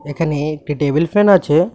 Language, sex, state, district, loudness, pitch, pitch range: Bengali, male, Tripura, West Tripura, -15 LUFS, 155 Hz, 150-175 Hz